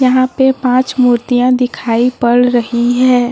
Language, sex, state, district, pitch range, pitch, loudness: Hindi, female, Jharkhand, Deoghar, 240-255 Hz, 250 Hz, -12 LUFS